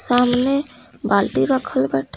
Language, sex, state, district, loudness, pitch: Hindi, female, Bihar, East Champaran, -19 LUFS, 245 Hz